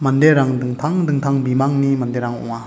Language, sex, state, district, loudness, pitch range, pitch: Garo, male, Meghalaya, West Garo Hills, -17 LUFS, 125-140 Hz, 135 Hz